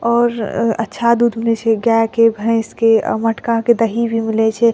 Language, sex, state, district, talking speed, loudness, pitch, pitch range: Maithili, female, Bihar, Madhepura, 215 wpm, -16 LUFS, 230 Hz, 225-235 Hz